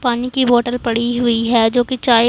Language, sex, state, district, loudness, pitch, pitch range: Hindi, female, Punjab, Pathankot, -16 LUFS, 240 Hz, 235-245 Hz